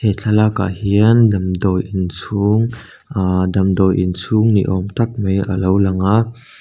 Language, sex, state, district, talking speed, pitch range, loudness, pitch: Mizo, male, Mizoram, Aizawl, 125 wpm, 95-110 Hz, -16 LUFS, 100 Hz